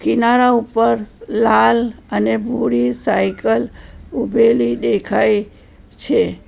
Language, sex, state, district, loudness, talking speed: Gujarati, female, Gujarat, Valsad, -16 LUFS, 85 wpm